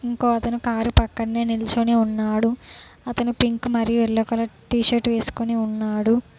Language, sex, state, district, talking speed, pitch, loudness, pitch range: Telugu, female, Telangana, Mahabubabad, 130 wpm, 230 Hz, -21 LUFS, 225-235 Hz